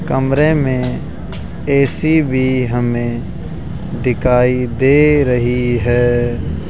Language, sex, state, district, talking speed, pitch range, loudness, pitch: Hindi, male, Rajasthan, Jaipur, 80 wpm, 120-135 Hz, -15 LUFS, 125 Hz